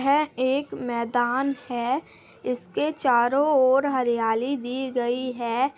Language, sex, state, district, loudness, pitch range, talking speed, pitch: Hindi, female, Bihar, Madhepura, -24 LUFS, 240-275 Hz, 75 wpm, 255 Hz